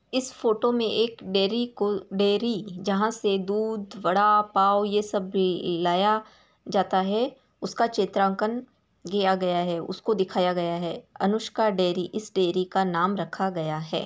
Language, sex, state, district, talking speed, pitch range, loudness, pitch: Hindi, female, Uttar Pradesh, Ghazipur, 155 wpm, 185-215 Hz, -25 LUFS, 200 Hz